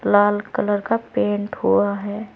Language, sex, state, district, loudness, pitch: Hindi, female, Uttar Pradesh, Saharanpur, -20 LUFS, 205 Hz